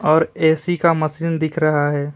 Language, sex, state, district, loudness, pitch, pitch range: Hindi, male, West Bengal, Alipurduar, -18 LUFS, 155 Hz, 150-165 Hz